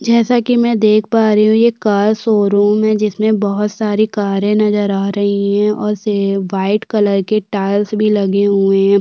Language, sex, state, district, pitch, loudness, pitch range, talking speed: Hindi, female, Uttarakhand, Tehri Garhwal, 210 Hz, -14 LUFS, 200-215 Hz, 185 wpm